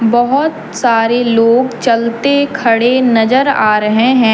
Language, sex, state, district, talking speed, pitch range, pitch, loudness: Hindi, female, Jharkhand, Deoghar, 125 wpm, 225-260 Hz, 240 Hz, -11 LUFS